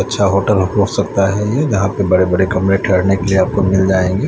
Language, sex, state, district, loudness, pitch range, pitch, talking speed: Hindi, male, Chandigarh, Chandigarh, -14 LUFS, 95-100 Hz, 95 Hz, 240 wpm